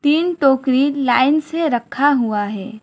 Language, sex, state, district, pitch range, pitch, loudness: Hindi, female, West Bengal, Alipurduar, 240-295 Hz, 270 Hz, -17 LUFS